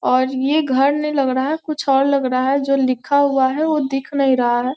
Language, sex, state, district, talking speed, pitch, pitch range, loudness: Hindi, female, Bihar, Gopalganj, 265 wpm, 270 Hz, 260-285 Hz, -17 LUFS